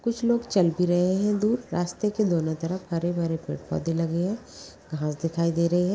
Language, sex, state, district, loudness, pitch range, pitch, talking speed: Magahi, female, Bihar, Gaya, -26 LUFS, 165-205 Hz, 175 Hz, 200 wpm